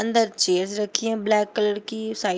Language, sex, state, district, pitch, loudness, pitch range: Hindi, female, Uttar Pradesh, Shamli, 210 Hz, -23 LUFS, 205-220 Hz